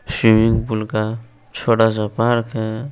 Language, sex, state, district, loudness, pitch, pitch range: Hindi, female, Bihar, West Champaran, -18 LUFS, 110 Hz, 110-115 Hz